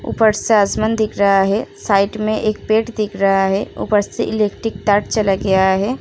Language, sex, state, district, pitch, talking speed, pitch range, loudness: Hindi, female, Uttar Pradesh, Muzaffarnagar, 210 Hz, 200 wpm, 195-220 Hz, -17 LUFS